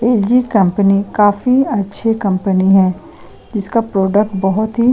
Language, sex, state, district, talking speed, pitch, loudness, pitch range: Hindi, female, Chhattisgarh, Sukma, 145 wpm, 205 Hz, -14 LUFS, 195-225 Hz